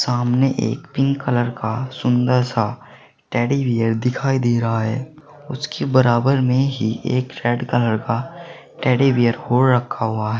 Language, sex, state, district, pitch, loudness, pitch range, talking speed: Hindi, male, Uttar Pradesh, Saharanpur, 125 Hz, -19 LUFS, 120-135 Hz, 155 wpm